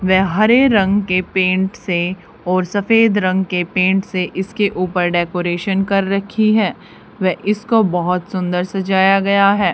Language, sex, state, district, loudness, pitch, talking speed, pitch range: Hindi, female, Haryana, Charkhi Dadri, -16 LUFS, 190 Hz, 155 wpm, 185-200 Hz